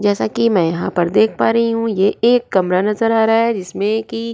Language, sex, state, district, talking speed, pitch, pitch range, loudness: Hindi, female, Goa, North and South Goa, 260 wpm, 220 Hz, 195-230 Hz, -16 LUFS